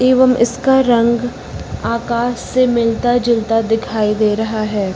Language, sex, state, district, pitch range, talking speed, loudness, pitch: Hindi, female, Uttar Pradesh, Lucknow, 225-245 Hz, 135 wpm, -15 LUFS, 235 Hz